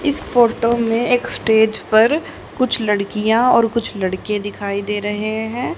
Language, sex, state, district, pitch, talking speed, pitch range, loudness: Hindi, female, Haryana, Rohtak, 220 Hz, 155 wpm, 210-240 Hz, -17 LUFS